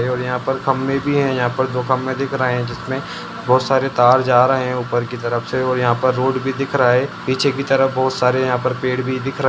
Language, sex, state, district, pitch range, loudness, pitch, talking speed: Hindi, male, Bihar, Jamui, 125-135 Hz, -18 LUFS, 130 Hz, 280 wpm